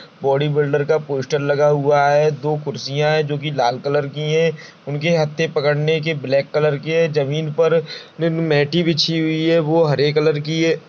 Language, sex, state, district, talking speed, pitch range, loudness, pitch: Hindi, male, Chhattisgarh, Rajnandgaon, 180 wpm, 145-160 Hz, -18 LUFS, 150 Hz